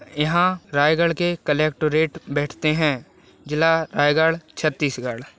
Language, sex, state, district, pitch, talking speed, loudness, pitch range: Hindi, male, Chhattisgarh, Raigarh, 155 Hz, 110 wpm, -21 LUFS, 145-165 Hz